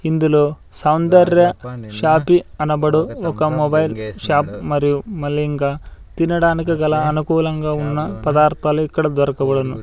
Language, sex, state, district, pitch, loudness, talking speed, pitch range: Telugu, male, Andhra Pradesh, Sri Satya Sai, 150 Hz, -17 LUFS, 105 wpm, 145-160 Hz